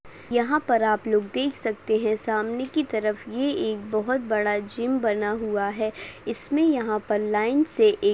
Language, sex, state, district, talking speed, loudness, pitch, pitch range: Hindi, female, Maharashtra, Solapur, 170 wpm, -25 LUFS, 220 Hz, 215-260 Hz